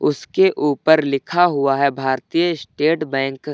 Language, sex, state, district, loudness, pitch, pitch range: Hindi, male, Uttar Pradesh, Lucknow, -18 LUFS, 145 Hz, 135-160 Hz